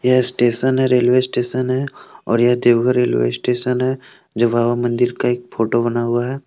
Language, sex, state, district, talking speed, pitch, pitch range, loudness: Hindi, male, Jharkhand, Deoghar, 195 wpm, 125 Hz, 120-130 Hz, -17 LUFS